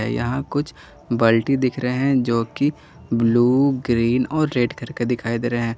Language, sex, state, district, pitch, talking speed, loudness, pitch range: Hindi, male, Jharkhand, Garhwa, 125 Hz, 175 wpm, -20 LUFS, 120-135 Hz